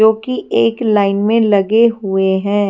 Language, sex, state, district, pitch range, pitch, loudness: Hindi, female, Punjab, Fazilka, 200-225 Hz, 210 Hz, -14 LUFS